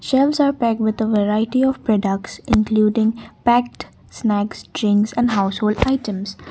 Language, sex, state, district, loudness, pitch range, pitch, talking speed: English, female, Assam, Kamrup Metropolitan, -19 LUFS, 210-240 Hz, 220 Hz, 140 wpm